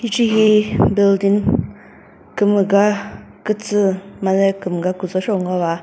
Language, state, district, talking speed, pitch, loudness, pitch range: Chakhesang, Nagaland, Dimapur, 90 wpm, 200 Hz, -17 LUFS, 190-210 Hz